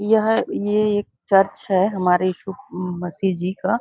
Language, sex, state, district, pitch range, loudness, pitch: Hindi, female, Chhattisgarh, Bastar, 185-210 Hz, -20 LUFS, 195 Hz